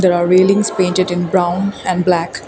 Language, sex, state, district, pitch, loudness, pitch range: English, female, Assam, Kamrup Metropolitan, 185 Hz, -15 LUFS, 175-190 Hz